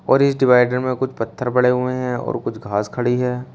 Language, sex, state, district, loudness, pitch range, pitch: Hindi, male, Uttar Pradesh, Shamli, -19 LUFS, 125-130 Hz, 125 Hz